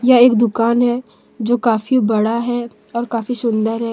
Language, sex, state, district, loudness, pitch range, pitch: Hindi, female, Jharkhand, Deoghar, -17 LUFS, 225-245 Hz, 235 Hz